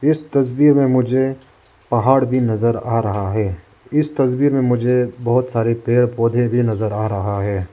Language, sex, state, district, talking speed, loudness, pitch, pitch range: Hindi, male, Arunachal Pradesh, Lower Dibang Valley, 180 wpm, -17 LUFS, 120 Hz, 110-130 Hz